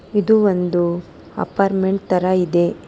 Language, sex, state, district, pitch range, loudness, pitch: Kannada, female, Karnataka, Bangalore, 175-195 Hz, -18 LUFS, 185 Hz